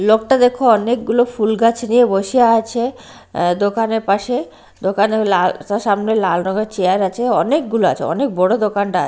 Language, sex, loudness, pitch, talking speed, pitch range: Bengali, female, -16 LUFS, 220 Hz, 160 wpm, 200-240 Hz